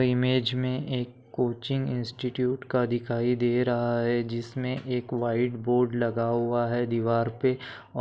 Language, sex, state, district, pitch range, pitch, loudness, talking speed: Hindi, male, Maharashtra, Pune, 120-125 Hz, 120 Hz, -27 LUFS, 150 wpm